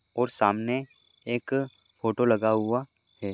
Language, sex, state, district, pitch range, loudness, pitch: Hindi, male, Maharashtra, Dhule, 110-125 Hz, -27 LUFS, 115 Hz